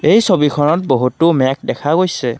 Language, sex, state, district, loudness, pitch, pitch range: Assamese, male, Assam, Kamrup Metropolitan, -14 LUFS, 150 Hz, 130-175 Hz